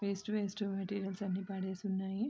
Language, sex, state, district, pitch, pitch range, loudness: Telugu, female, Andhra Pradesh, Srikakulam, 195 Hz, 190-205 Hz, -38 LUFS